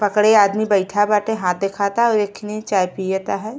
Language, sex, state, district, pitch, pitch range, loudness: Bhojpuri, female, Uttar Pradesh, Ghazipur, 205 Hz, 195-215 Hz, -18 LUFS